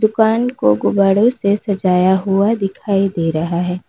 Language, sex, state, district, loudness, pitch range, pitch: Hindi, female, Uttar Pradesh, Lalitpur, -16 LUFS, 180-210 Hz, 195 Hz